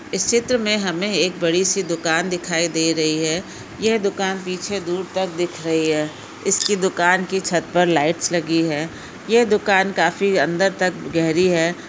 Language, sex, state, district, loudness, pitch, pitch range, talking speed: Hindi, female, Maharashtra, Dhule, -19 LUFS, 180 Hz, 165-195 Hz, 175 wpm